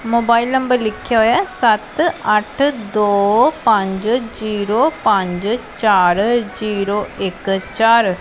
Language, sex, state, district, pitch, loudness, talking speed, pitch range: Punjabi, female, Punjab, Pathankot, 220 Hz, -16 LUFS, 100 wpm, 205-235 Hz